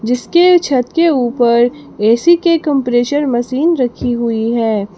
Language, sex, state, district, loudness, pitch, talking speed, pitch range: Hindi, female, Jharkhand, Palamu, -13 LUFS, 250 Hz, 135 wpm, 235-295 Hz